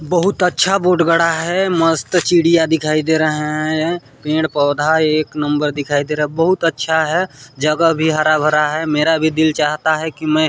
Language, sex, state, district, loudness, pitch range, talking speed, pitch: Hindi, male, Chhattisgarh, Balrampur, -16 LUFS, 150-165 Hz, 195 wpm, 155 Hz